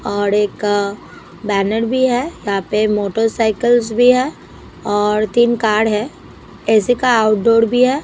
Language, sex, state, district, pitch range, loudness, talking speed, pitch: Hindi, female, Punjab, Pathankot, 210-240 Hz, -15 LUFS, 150 wpm, 220 Hz